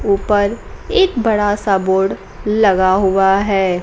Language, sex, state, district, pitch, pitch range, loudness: Hindi, female, Bihar, Kaimur, 200 Hz, 190-210 Hz, -15 LUFS